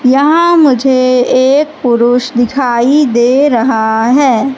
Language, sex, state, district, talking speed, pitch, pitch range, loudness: Hindi, female, Madhya Pradesh, Katni, 105 wpm, 255 Hz, 240-280 Hz, -9 LUFS